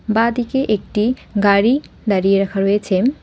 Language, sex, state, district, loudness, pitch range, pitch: Bengali, female, West Bengal, Alipurduar, -17 LUFS, 200-240 Hz, 215 Hz